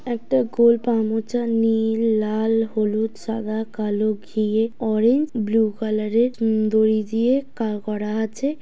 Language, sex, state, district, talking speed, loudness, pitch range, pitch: Bengali, female, West Bengal, Dakshin Dinajpur, 130 wpm, -21 LUFS, 215-235 Hz, 220 Hz